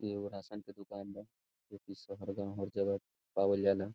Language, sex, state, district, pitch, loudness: Bhojpuri, male, Bihar, Saran, 100 Hz, -38 LUFS